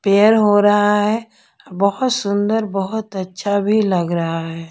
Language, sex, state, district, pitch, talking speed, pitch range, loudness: Hindi, female, Bihar, Kaimur, 205 Hz, 140 wpm, 190-215 Hz, -17 LUFS